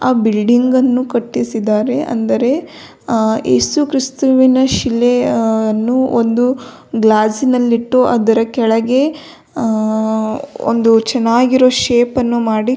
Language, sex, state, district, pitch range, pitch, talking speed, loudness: Kannada, female, Karnataka, Belgaum, 225-255 Hz, 240 Hz, 100 wpm, -14 LUFS